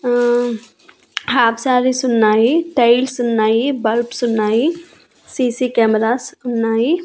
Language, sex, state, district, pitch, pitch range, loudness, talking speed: Telugu, female, Andhra Pradesh, Annamaya, 240 Hz, 230-255 Hz, -16 LUFS, 95 wpm